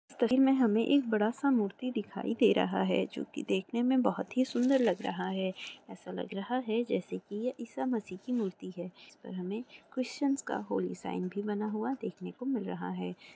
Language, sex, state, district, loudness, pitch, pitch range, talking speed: Hindi, female, Goa, North and South Goa, -32 LUFS, 230 Hz, 190-255 Hz, 205 wpm